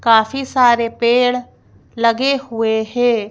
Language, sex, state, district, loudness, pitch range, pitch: Hindi, female, Madhya Pradesh, Bhopal, -16 LUFS, 230-250 Hz, 240 Hz